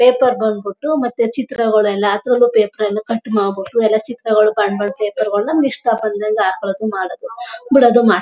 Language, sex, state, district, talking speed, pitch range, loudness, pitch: Kannada, male, Karnataka, Mysore, 170 wpm, 205-240 Hz, -16 LUFS, 220 Hz